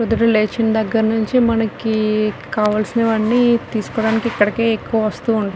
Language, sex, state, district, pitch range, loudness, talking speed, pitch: Telugu, female, Telangana, Nalgonda, 215-230 Hz, -17 LUFS, 120 wpm, 220 Hz